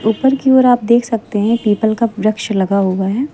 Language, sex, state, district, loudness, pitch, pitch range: Hindi, female, Uttar Pradesh, Lucknow, -14 LUFS, 220 Hz, 210-245 Hz